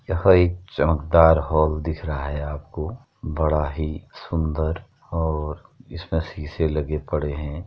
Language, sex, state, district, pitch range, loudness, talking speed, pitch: Hindi, male, Uttar Pradesh, Jyotiba Phule Nagar, 75-85 Hz, -23 LUFS, 135 wpm, 80 Hz